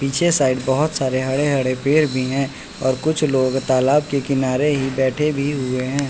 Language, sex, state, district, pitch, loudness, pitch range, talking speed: Hindi, male, Bihar, West Champaran, 135 Hz, -19 LUFS, 130-145 Hz, 195 wpm